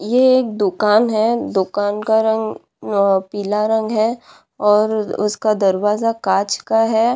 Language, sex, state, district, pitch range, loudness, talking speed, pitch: Hindi, female, Bihar, Madhepura, 205-225 Hz, -17 LUFS, 140 wpm, 215 Hz